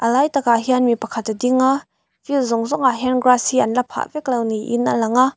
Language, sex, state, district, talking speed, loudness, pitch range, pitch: Mizo, female, Mizoram, Aizawl, 235 wpm, -18 LUFS, 230-260 Hz, 250 Hz